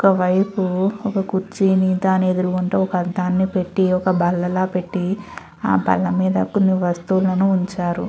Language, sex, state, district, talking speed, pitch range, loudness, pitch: Telugu, female, Andhra Pradesh, Chittoor, 120 wpm, 180-190 Hz, -19 LUFS, 185 Hz